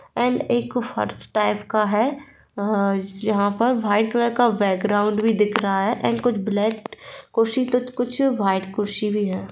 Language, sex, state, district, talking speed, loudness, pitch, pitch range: Hindi, female, Jharkhand, Sahebganj, 165 wpm, -21 LUFS, 215 Hz, 205-240 Hz